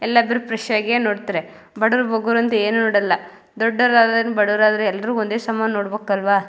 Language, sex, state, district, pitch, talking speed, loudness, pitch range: Kannada, female, Karnataka, Mysore, 220 Hz, 165 wpm, -19 LUFS, 205-230 Hz